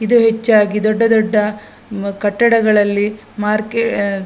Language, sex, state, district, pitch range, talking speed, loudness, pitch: Kannada, female, Karnataka, Dakshina Kannada, 205-225 Hz, 100 wpm, -15 LUFS, 215 Hz